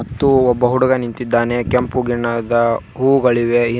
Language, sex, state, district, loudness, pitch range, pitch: Kannada, male, Karnataka, Koppal, -16 LUFS, 120-125 Hz, 120 Hz